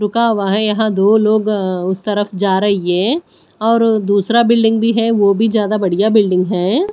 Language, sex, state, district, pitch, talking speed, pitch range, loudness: Hindi, female, Punjab, Pathankot, 210 Hz, 190 wpm, 195-225 Hz, -14 LUFS